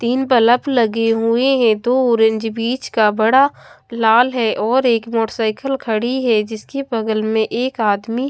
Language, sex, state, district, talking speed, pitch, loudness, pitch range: Hindi, female, Odisha, Khordha, 160 wpm, 230 Hz, -16 LUFS, 220-250 Hz